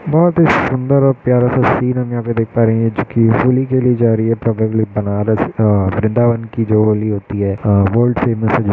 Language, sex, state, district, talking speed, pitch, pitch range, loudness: Hindi, male, Uttar Pradesh, Hamirpur, 235 wpm, 115 Hz, 110-125 Hz, -14 LUFS